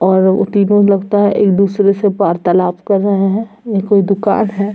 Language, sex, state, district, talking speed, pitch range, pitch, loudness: Hindi, female, Bihar, Samastipur, 190 wpm, 195-205 Hz, 200 Hz, -13 LUFS